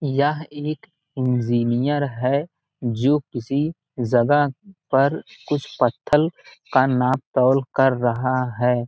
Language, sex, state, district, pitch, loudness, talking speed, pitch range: Hindi, male, Bihar, Gopalganj, 135 Hz, -21 LUFS, 110 wpm, 125-145 Hz